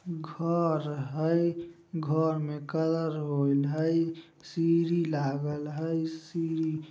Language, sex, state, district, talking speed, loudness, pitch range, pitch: Maithili, male, Bihar, Samastipur, 95 wpm, -30 LUFS, 150-165 Hz, 160 Hz